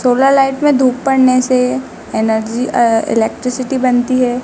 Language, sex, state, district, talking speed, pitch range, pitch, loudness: Hindi, male, Madhya Pradesh, Dhar, 150 wpm, 245-265 Hz, 255 Hz, -13 LUFS